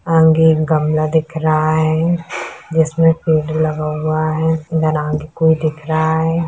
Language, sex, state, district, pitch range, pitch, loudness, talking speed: Hindi, female, Bihar, Darbhanga, 155-160 Hz, 160 Hz, -16 LUFS, 140 wpm